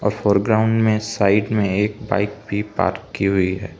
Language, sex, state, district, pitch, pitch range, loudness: Hindi, male, Arunachal Pradesh, Lower Dibang Valley, 105 Hz, 100-105 Hz, -19 LUFS